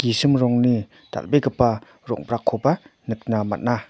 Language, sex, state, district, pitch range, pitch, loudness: Garo, male, Meghalaya, North Garo Hills, 110-125 Hz, 120 Hz, -22 LUFS